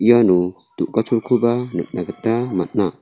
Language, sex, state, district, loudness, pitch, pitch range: Garo, male, Meghalaya, South Garo Hills, -19 LUFS, 115 Hz, 100-120 Hz